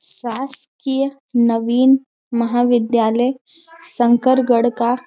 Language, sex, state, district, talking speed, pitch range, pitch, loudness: Hindi, female, Chhattisgarh, Balrampur, 60 wpm, 235-265 Hz, 245 Hz, -17 LUFS